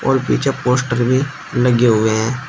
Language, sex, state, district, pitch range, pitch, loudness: Hindi, male, Uttar Pradesh, Shamli, 120-135 Hz, 125 Hz, -16 LUFS